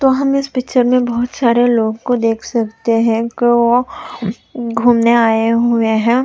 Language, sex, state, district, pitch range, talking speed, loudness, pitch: Hindi, female, Chhattisgarh, Raigarh, 230-250 Hz, 165 wpm, -14 LUFS, 235 Hz